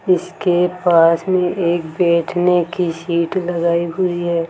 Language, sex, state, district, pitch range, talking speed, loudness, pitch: Hindi, female, Rajasthan, Jaipur, 170-180 Hz, 135 wpm, -17 LUFS, 175 Hz